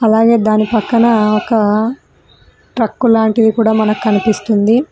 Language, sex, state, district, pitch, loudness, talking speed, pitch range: Telugu, female, Telangana, Mahabubabad, 220 Hz, -12 LUFS, 110 wpm, 215-230 Hz